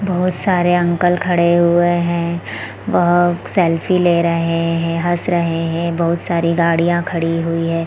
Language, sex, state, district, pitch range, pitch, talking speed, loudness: Hindi, female, Chhattisgarh, Bilaspur, 165-175 Hz, 170 Hz, 150 wpm, -16 LUFS